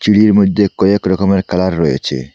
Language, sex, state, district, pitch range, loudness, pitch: Bengali, male, Assam, Hailakandi, 95-105 Hz, -13 LUFS, 95 Hz